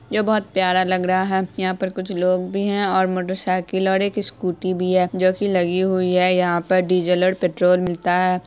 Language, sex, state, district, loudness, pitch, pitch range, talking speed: Hindi, female, Bihar, Saharsa, -20 LUFS, 185 Hz, 180-190 Hz, 225 wpm